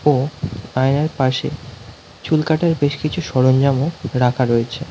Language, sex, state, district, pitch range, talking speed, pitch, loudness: Bengali, male, West Bengal, North 24 Parganas, 125-150 Hz, 120 wpm, 135 Hz, -18 LUFS